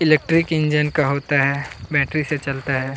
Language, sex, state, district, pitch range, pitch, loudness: Hindi, male, Chhattisgarh, Kabirdham, 140-155 Hz, 145 Hz, -20 LUFS